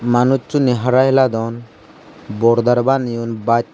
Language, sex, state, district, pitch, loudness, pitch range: Chakma, male, Tripura, Unakoti, 120 Hz, -16 LUFS, 115-130 Hz